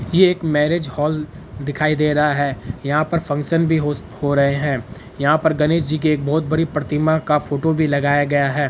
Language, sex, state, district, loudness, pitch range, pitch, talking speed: Hindi, male, Bihar, Araria, -19 LUFS, 145-155 Hz, 150 Hz, 200 wpm